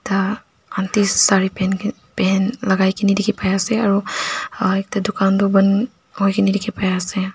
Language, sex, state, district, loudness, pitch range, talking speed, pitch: Nagamese, female, Nagaland, Dimapur, -18 LUFS, 190-210 Hz, 105 wpm, 195 Hz